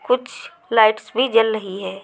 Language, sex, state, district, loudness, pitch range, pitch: Hindi, female, Chhattisgarh, Raipur, -18 LUFS, 215-305 Hz, 220 Hz